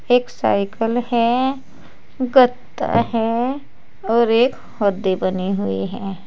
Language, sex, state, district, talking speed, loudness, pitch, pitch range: Hindi, female, Uttar Pradesh, Saharanpur, 105 wpm, -19 LUFS, 230 Hz, 200-245 Hz